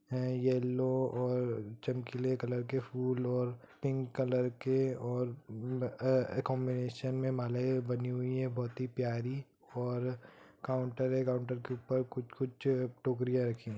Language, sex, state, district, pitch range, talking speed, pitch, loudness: Hindi, male, Bihar, Gopalganj, 125-130 Hz, 130 wpm, 125 Hz, -35 LUFS